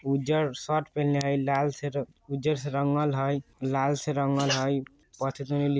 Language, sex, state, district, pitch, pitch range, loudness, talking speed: Bajjika, male, Bihar, Vaishali, 140 Hz, 140-145 Hz, -28 LUFS, 175 wpm